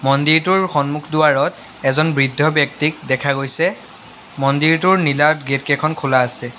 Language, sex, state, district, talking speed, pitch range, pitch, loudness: Assamese, male, Assam, Sonitpur, 120 wpm, 135-155 Hz, 150 Hz, -16 LUFS